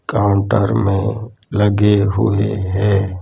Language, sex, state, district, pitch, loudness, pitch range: Hindi, male, Gujarat, Gandhinagar, 100 Hz, -16 LUFS, 100-105 Hz